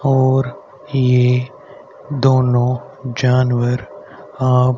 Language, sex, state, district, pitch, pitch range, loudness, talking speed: Hindi, male, Haryana, Rohtak, 125 Hz, 125-130 Hz, -17 LUFS, 65 wpm